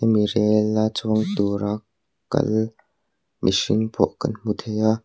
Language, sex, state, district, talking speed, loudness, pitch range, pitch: Mizo, male, Mizoram, Aizawl, 155 wpm, -22 LUFS, 105-110 Hz, 110 Hz